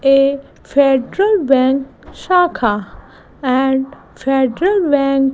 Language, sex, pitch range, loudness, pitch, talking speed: English, female, 265-285 Hz, -15 LUFS, 275 Hz, 90 wpm